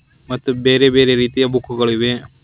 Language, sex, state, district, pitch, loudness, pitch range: Kannada, male, Karnataka, Koppal, 125 Hz, -15 LUFS, 120-130 Hz